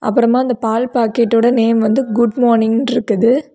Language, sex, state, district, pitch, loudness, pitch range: Tamil, female, Tamil Nadu, Kanyakumari, 235 Hz, -14 LUFS, 225-245 Hz